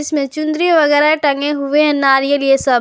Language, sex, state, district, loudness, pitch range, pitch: Hindi, female, Jharkhand, Garhwa, -14 LUFS, 275-300 Hz, 290 Hz